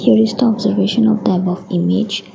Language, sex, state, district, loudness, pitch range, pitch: English, female, Assam, Kamrup Metropolitan, -15 LUFS, 185-220 Hz, 205 Hz